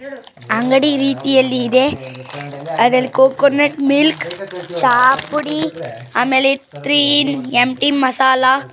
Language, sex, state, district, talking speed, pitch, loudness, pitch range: Kannada, female, Karnataka, Bangalore, 90 wpm, 260 Hz, -14 LUFS, 245-280 Hz